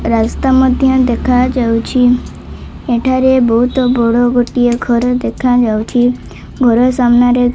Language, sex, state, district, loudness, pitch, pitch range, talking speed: Odia, female, Odisha, Malkangiri, -12 LUFS, 245 Hz, 240-255 Hz, 95 wpm